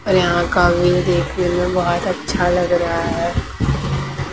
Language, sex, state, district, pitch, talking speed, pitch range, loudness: Hindi, female, Maharashtra, Mumbai Suburban, 175 Hz, 125 wpm, 175-180 Hz, -18 LUFS